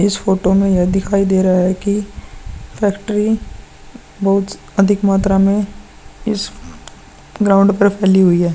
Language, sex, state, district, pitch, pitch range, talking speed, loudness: Hindi, male, Bihar, Vaishali, 195 Hz, 190-205 Hz, 140 wpm, -15 LUFS